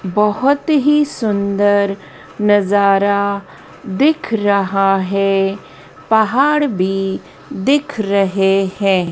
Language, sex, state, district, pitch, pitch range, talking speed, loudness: Hindi, female, Madhya Pradesh, Dhar, 200 Hz, 195-220 Hz, 80 wpm, -15 LUFS